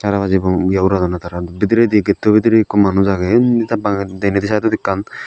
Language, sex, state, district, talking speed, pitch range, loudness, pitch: Chakma, male, Tripura, Dhalai, 205 wpm, 95-105 Hz, -15 LUFS, 100 Hz